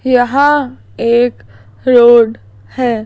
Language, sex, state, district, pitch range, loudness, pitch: Hindi, female, Madhya Pradesh, Bhopal, 220-255 Hz, -11 LUFS, 240 Hz